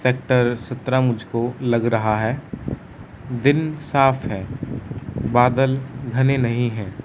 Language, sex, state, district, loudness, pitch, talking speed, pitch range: Hindi, male, Chandigarh, Chandigarh, -21 LUFS, 125 Hz, 120 wpm, 115-135 Hz